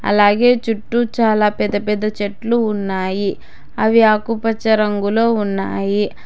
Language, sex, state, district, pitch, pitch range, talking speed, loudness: Telugu, female, Telangana, Hyderabad, 215 Hz, 205-225 Hz, 105 wpm, -17 LUFS